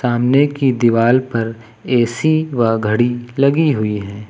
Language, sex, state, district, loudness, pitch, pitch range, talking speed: Hindi, male, Uttar Pradesh, Lucknow, -16 LUFS, 120 Hz, 115-135 Hz, 140 wpm